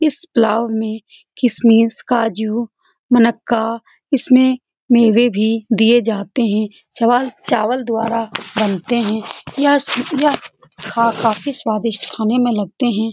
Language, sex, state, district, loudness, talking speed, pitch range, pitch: Hindi, female, Bihar, Saran, -16 LUFS, 120 wpm, 220-250 Hz, 230 Hz